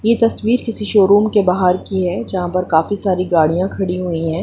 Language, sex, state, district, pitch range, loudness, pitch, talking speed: Hindi, female, Jharkhand, Jamtara, 180-210 Hz, -16 LUFS, 185 Hz, 205 wpm